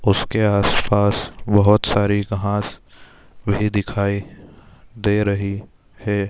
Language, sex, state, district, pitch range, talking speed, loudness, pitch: Hindi, male, Bihar, Darbhanga, 100-105 Hz, 105 wpm, -19 LUFS, 100 Hz